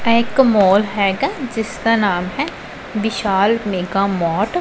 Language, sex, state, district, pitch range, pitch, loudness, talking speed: Punjabi, female, Punjab, Pathankot, 195-230 Hz, 210 Hz, -17 LUFS, 145 wpm